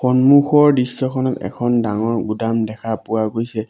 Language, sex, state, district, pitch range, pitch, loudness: Assamese, male, Assam, Sonitpur, 110-130 Hz, 115 Hz, -17 LUFS